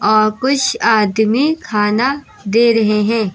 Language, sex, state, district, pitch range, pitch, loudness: Hindi, female, Uttar Pradesh, Lucknow, 215-265 Hz, 225 Hz, -14 LUFS